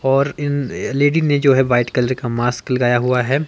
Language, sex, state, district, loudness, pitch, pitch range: Hindi, male, Himachal Pradesh, Shimla, -17 LUFS, 130 Hz, 125-140 Hz